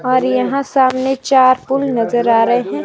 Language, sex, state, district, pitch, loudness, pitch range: Hindi, female, Himachal Pradesh, Shimla, 255 Hz, -14 LUFS, 240-265 Hz